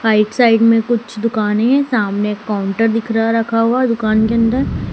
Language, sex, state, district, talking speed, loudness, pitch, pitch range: Hindi, female, Madhya Pradesh, Dhar, 195 wpm, -15 LUFS, 225 Hz, 215-230 Hz